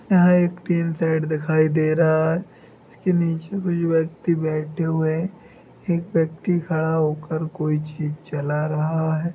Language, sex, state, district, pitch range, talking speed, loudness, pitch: Hindi, male, Jharkhand, Jamtara, 155-170 Hz, 150 wpm, -22 LUFS, 160 Hz